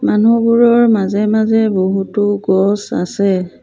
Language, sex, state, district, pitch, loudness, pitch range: Assamese, female, Assam, Sonitpur, 205 Hz, -13 LUFS, 195-225 Hz